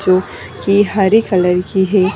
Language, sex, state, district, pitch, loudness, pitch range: Hindi, female, Bihar, Gaya, 190 Hz, -14 LUFS, 185-200 Hz